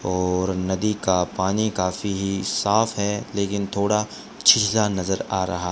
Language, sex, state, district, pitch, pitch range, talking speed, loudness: Hindi, male, Rajasthan, Bikaner, 100 Hz, 95-105 Hz, 145 wpm, -22 LUFS